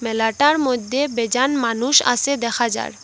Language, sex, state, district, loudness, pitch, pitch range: Bengali, female, Assam, Hailakandi, -18 LUFS, 245 Hz, 235-280 Hz